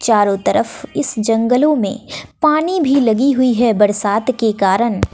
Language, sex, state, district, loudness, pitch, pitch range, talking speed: Hindi, female, Bihar, West Champaran, -15 LUFS, 235 Hz, 210-270 Hz, 150 wpm